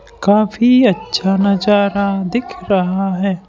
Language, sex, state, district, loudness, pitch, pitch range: Hindi, male, Madhya Pradesh, Bhopal, -15 LUFS, 200 Hz, 195-210 Hz